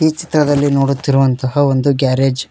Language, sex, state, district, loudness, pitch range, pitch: Kannada, male, Karnataka, Koppal, -14 LUFS, 135-145 Hz, 140 Hz